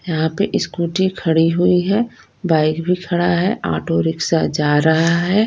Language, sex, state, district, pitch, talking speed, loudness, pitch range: Hindi, female, Punjab, Kapurthala, 170 Hz, 165 wpm, -17 LUFS, 160-180 Hz